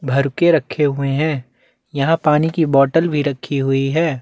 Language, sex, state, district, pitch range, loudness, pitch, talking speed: Hindi, male, Chhattisgarh, Bastar, 135-160 Hz, -17 LUFS, 145 Hz, 185 wpm